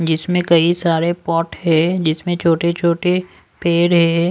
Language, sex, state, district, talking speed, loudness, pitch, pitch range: Hindi, male, Delhi, New Delhi, 125 wpm, -16 LUFS, 170 Hz, 165-175 Hz